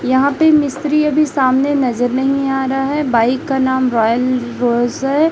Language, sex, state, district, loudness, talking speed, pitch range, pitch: Hindi, female, Chhattisgarh, Raipur, -15 LUFS, 180 wpm, 250-285 Hz, 270 Hz